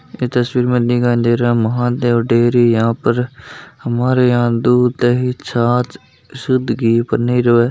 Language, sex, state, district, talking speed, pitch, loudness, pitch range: Hindi, male, Rajasthan, Nagaur, 165 wpm, 120 Hz, -15 LUFS, 120-125 Hz